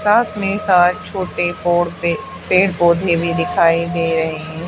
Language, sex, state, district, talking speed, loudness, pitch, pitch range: Hindi, female, Haryana, Charkhi Dadri, 140 wpm, -16 LUFS, 175 Hz, 170-185 Hz